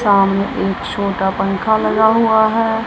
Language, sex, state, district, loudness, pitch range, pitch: Hindi, female, Punjab, Kapurthala, -15 LUFS, 195-225 Hz, 215 Hz